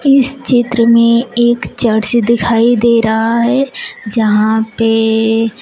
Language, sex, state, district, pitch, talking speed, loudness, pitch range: Hindi, female, Uttar Pradesh, Shamli, 230 Hz, 115 wpm, -12 LUFS, 225-240 Hz